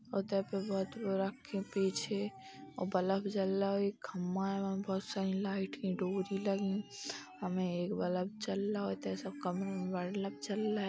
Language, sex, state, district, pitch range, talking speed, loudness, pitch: Bundeli, female, Uttar Pradesh, Hamirpur, 185-200 Hz, 120 wpm, -37 LUFS, 195 Hz